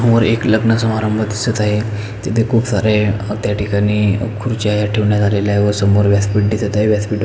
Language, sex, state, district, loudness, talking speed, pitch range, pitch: Marathi, male, Maharashtra, Pune, -15 LUFS, 200 wpm, 105-110 Hz, 105 Hz